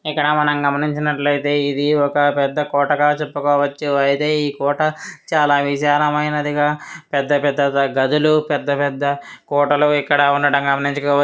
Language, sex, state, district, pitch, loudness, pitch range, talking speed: Telugu, male, Andhra Pradesh, Srikakulam, 145 Hz, -17 LUFS, 140-150 Hz, 110 wpm